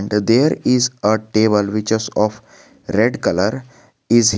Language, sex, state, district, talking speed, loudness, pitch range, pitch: English, male, Jharkhand, Garhwa, 135 wpm, -17 LUFS, 105-120 Hz, 110 Hz